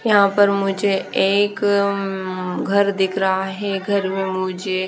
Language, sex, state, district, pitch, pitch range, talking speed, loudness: Hindi, female, Haryana, Charkhi Dadri, 195 Hz, 190-200 Hz, 150 wpm, -19 LUFS